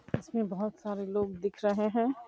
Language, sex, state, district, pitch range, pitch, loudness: Hindi, female, Uttar Pradesh, Deoria, 200-225 Hz, 205 Hz, -32 LUFS